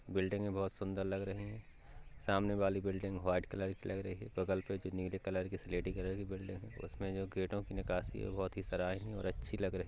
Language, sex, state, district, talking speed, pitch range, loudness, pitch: Hindi, male, Uttar Pradesh, Hamirpur, 250 wpm, 95-100 Hz, -40 LUFS, 95 Hz